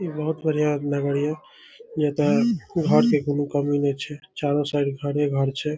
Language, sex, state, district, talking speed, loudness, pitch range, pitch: Maithili, male, Bihar, Saharsa, 165 wpm, -23 LUFS, 145-150 Hz, 145 Hz